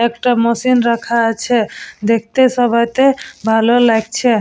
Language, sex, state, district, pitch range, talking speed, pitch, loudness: Bengali, female, West Bengal, Purulia, 230-245 Hz, 110 wpm, 235 Hz, -14 LUFS